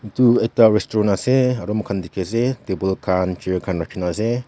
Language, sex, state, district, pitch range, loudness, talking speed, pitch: Nagamese, male, Nagaland, Kohima, 95-115 Hz, -19 LUFS, 160 wpm, 105 Hz